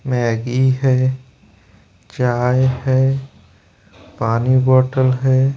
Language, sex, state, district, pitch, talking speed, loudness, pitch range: Hindi, male, Bihar, Gopalganj, 130 Hz, 75 wpm, -17 LUFS, 110-130 Hz